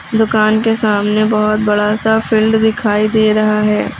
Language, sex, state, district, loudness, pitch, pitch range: Hindi, female, Uttar Pradesh, Lucknow, -13 LUFS, 215 Hz, 210-220 Hz